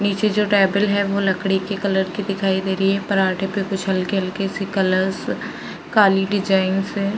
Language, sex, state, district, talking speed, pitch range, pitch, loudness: Hindi, female, Uttar Pradesh, Varanasi, 190 wpm, 190-200 Hz, 195 Hz, -20 LUFS